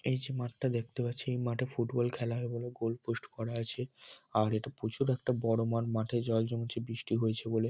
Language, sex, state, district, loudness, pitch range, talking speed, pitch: Bengali, male, West Bengal, North 24 Parganas, -34 LUFS, 115-125 Hz, 210 wpm, 120 Hz